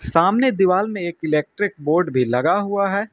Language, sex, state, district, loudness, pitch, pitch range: Hindi, male, Uttar Pradesh, Lucknow, -19 LUFS, 185 Hz, 155-200 Hz